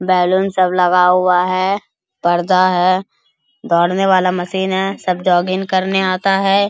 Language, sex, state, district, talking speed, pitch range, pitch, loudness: Hindi, male, Bihar, Bhagalpur, 160 wpm, 180-190 Hz, 185 Hz, -15 LUFS